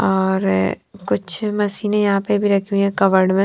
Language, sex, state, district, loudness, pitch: Hindi, female, Punjab, Fazilka, -18 LUFS, 195 Hz